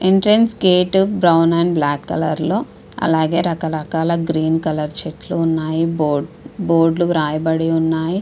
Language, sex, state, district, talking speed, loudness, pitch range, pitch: Telugu, female, Andhra Pradesh, Visakhapatnam, 125 wpm, -17 LUFS, 160-175 Hz, 165 Hz